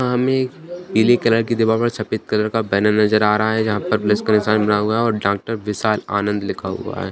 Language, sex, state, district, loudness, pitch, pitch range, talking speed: Hindi, male, Bihar, Jamui, -18 LUFS, 110 Hz, 105-115 Hz, 235 wpm